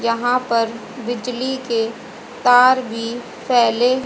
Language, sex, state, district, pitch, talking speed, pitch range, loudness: Hindi, female, Haryana, Jhajjar, 240 Hz, 105 wpm, 230-250 Hz, -18 LUFS